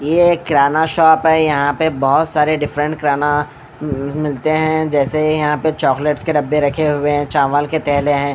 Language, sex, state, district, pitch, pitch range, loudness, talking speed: Hindi, male, Bihar, Katihar, 150 Hz, 145-155 Hz, -15 LUFS, 185 wpm